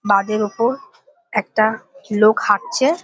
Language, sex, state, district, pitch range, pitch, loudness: Bengali, female, West Bengal, Jhargram, 215-275 Hz, 220 Hz, -18 LUFS